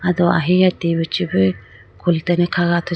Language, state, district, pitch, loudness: Idu Mishmi, Arunachal Pradesh, Lower Dibang Valley, 170 Hz, -17 LUFS